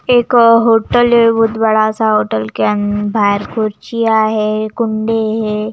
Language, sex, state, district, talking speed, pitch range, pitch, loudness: Hindi, female, Himachal Pradesh, Shimla, 125 wpm, 215-230 Hz, 220 Hz, -13 LUFS